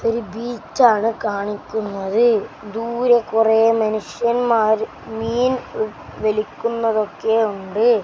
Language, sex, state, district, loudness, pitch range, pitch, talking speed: Malayalam, male, Kerala, Kasaragod, -19 LUFS, 215-235 Hz, 225 Hz, 65 wpm